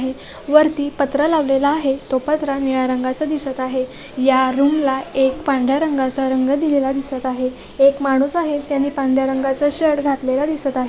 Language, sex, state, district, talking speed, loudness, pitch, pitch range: Marathi, female, Maharashtra, Solapur, 160 wpm, -18 LUFS, 275 Hz, 265-290 Hz